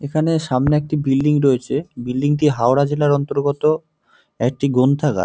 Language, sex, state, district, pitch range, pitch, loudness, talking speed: Bengali, male, West Bengal, North 24 Parganas, 135-150 Hz, 145 Hz, -18 LUFS, 125 wpm